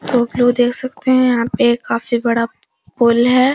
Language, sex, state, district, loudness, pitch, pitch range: Hindi, female, Bihar, Supaul, -15 LUFS, 245 Hz, 235-255 Hz